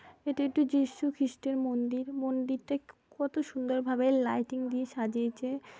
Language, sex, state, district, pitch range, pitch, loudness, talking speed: Bengali, female, West Bengal, Paschim Medinipur, 255-280 Hz, 260 Hz, -32 LUFS, 145 wpm